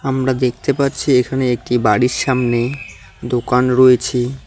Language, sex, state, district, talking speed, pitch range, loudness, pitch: Bengali, male, West Bengal, Cooch Behar, 120 wpm, 120-130 Hz, -16 LUFS, 125 Hz